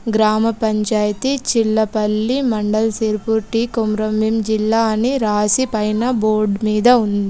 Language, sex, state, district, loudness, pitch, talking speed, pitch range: Telugu, female, Telangana, Komaram Bheem, -17 LUFS, 220 Hz, 115 wpm, 215-230 Hz